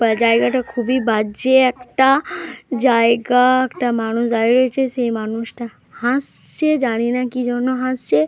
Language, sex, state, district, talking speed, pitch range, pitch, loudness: Bengali, female, Jharkhand, Jamtara, 125 wpm, 230-255 Hz, 245 Hz, -17 LUFS